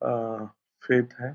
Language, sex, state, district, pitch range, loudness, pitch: Angika, male, Bihar, Purnia, 110-125 Hz, -27 LUFS, 120 Hz